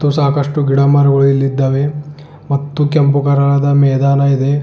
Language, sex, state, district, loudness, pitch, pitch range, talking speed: Kannada, male, Karnataka, Bidar, -13 LUFS, 140 Hz, 140-145 Hz, 105 wpm